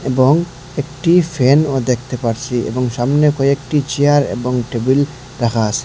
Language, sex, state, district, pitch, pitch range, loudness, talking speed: Bengali, male, Assam, Hailakandi, 135 Hz, 125-145 Hz, -16 LUFS, 135 wpm